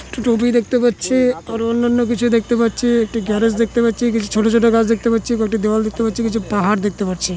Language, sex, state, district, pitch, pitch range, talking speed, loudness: Bengali, male, West Bengal, Malda, 230 Hz, 220-240 Hz, 220 wpm, -17 LUFS